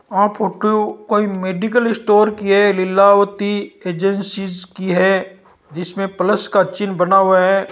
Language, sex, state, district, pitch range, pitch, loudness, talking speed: Marwari, male, Rajasthan, Nagaur, 190-205 Hz, 195 Hz, -16 LUFS, 140 wpm